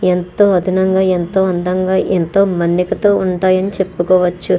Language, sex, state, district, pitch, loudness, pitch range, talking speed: Telugu, female, Andhra Pradesh, Chittoor, 185 Hz, -14 LUFS, 180-190 Hz, 105 wpm